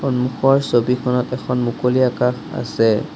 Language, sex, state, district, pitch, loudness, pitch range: Assamese, male, Assam, Sonitpur, 125 Hz, -18 LUFS, 120-130 Hz